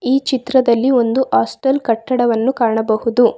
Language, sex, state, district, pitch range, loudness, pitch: Kannada, female, Karnataka, Bangalore, 230-260 Hz, -15 LUFS, 245 Hz